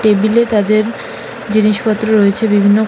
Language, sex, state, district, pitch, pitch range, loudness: Bengali, female, West Bengal, Jhargram, 215 Hz, 210-220 Hz, -13 LUFS